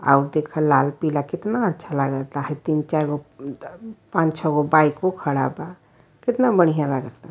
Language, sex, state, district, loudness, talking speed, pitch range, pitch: Hindi, male, Uttar Pradesh, Varanasi, -21 LUFS, 190 wpm, 145-170 Hz, 150 Hz